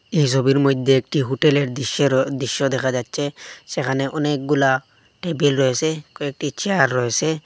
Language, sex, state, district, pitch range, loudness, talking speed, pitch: Bengali, male, Assam, Hailakandi, 135-145 Hz, -20 LUFS, 130 wpm, 140 Hz